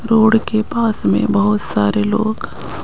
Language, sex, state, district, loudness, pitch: Hindi, female, Rajasthan, Jaipur, -16 LUFS, 215 Hz